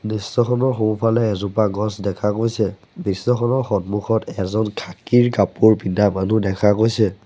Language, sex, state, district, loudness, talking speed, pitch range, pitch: Assamese, male, Assam, Sonitpur, -19 LUFS, 125 wpm, 100-115 Hz, 110 Hz